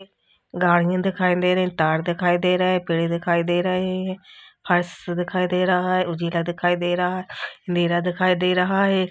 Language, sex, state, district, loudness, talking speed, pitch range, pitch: Hindi, female, Uttar Pradesh, Jalaun, -21 LUFS, 200 wpm, 175-185 Hz, 180 Hz